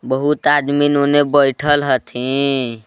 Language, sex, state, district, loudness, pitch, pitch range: Magahi, male, Jharkhand, Palamu, -15 LUFS, 140 Hz, 130-145 Hz